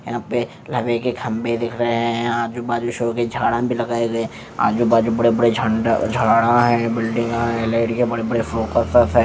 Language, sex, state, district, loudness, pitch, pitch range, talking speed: Hindi, male, Punjab, Fazilka, -19 LUFS, 115 Hz, 115-120 Hz, 205 wpm